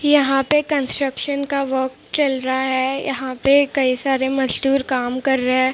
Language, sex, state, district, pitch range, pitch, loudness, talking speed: Hindi, female, Maharashtra, Mumbai Suburban, 260-280 Hz, 270 Hz, -19 LUFS, 175 wpm